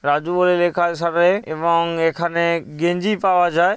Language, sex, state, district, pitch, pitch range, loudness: Bengali, male, West Bengal, Paschim Medinipur, 170 Hz, 170-180 Hz, -18 LUFS